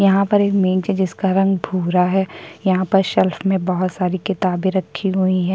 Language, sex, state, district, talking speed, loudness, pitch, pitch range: Hindi, female, Chhattisgarh, Kabirdham, 205 wpm, -18 LUFS, 190 Hz, 185-195 Hz